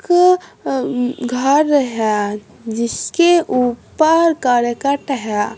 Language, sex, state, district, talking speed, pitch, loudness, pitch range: Hindi, male, Bihar, West Champaran, 75 wpm, 250 Hz, -16 LUFS, 235-315 Hz